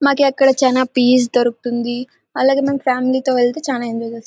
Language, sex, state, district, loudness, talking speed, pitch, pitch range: Telugu, female, Karnataka, Bellary, -16 LUFS, 185 wpm, 255 Hz, 245-270 Hz